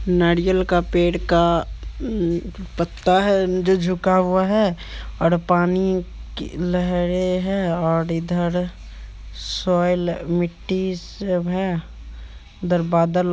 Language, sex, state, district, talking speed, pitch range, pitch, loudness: Hindi, male, Bihar, Supaul, 105 wpm, 170-185 Hz, 180 Hz, -20 LUFS